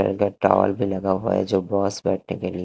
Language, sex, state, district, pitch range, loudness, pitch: Hindi, male, Haryana, Rohtak, 95-100 Hz, -22 LUFS, 100 Hz